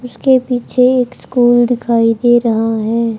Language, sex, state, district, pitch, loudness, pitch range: Hindi, male, Haryana, Charkhi Dadri, 240 Hz, -13 LUFS, 230-250 Hz